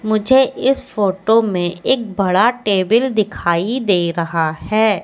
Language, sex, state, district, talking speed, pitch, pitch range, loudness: Hindi, female, Madhya Pradesh, Katni, 130 wpm, 210 Hz, 185-230 Hz, -16 LUFS